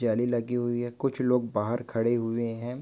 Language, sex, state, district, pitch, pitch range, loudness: Hindi, male, Chhattisgarh, Korba, 120 Hz, 115-125 Hz, -28 LUFS